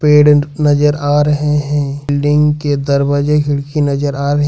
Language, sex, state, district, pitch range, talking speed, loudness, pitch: Hindi, male, Jharkhand, Ranchi, 145-150 Hz, 160 wpm, -13 LUFS, 145 Hz